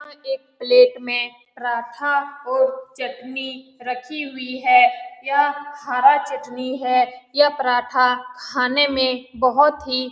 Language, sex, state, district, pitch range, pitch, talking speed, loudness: Hindi, female, Bihar, Saran, 250-290 Hz, 265 Hz, 125 wpm, -20 LUFS